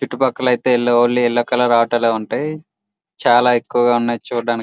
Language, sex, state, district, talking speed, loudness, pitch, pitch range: Telugu, male, Andhra Pradesh, Srikakulam, 170 wpm, -16 LUFS, 120 Hz, 120-125 Hz